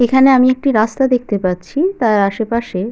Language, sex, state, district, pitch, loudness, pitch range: Bengali, female, West Bengal, Jalpaiguri, 235 Hz, -14 LUFS, 210-265 Hz